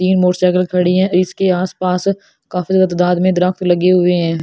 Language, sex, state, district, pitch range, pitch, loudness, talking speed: Hindi, female, Delhi, New Delhi, 180-185 Hz, 180 Hz, -14 LUFS, 205 wpm